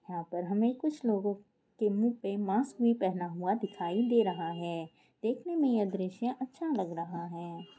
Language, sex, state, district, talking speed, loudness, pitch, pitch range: Hindi, female, Rajasthan, Nagaur, 185 wpm, -33 LUFS, 205 Hz, 175-235 Hz